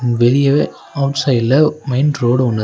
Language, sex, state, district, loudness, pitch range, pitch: Tamil, male, Tamil Nadu, Nilgiris, -15 LUFS, 120-140 Hz, 135 Hz